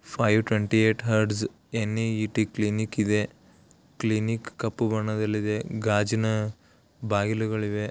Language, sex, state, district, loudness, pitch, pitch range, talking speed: Kannada, male, Karnataka, Belgaum, -26 LUFS, 110 Hz, 105-110 Hz, 120 wpm